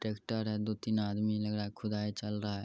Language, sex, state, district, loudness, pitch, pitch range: Hindi, male, Bihar, Araria, -35 LUFS, 105 Hz, 105-110 Hz